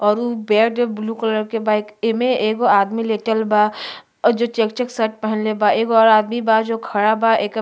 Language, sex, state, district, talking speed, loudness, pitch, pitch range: Bhojpuri, female, Uttar Pradesh, Gorakhpur, 220 wpm, -18 LUFS, 220 Hz, 215-230 Hz